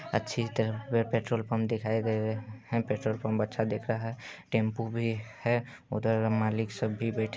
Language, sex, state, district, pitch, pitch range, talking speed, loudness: Hindi, male, Bihar, Saharsa, 110 Hz, 110-115 Hz, 180 wpm, -31 LUFS